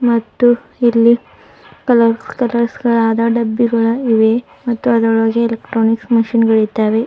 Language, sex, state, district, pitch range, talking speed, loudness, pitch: Kannada, female, Karnataka, Bidar, 225-235 Hz, 85 wpm, -14 LUFS, 230 Hz